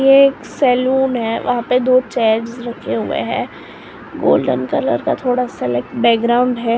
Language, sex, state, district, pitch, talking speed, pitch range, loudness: Hindi, female, Maharashtra, Mumbai Suburban, 245 Hz, 160 wpm, 230-255 Hz, -16 LUFS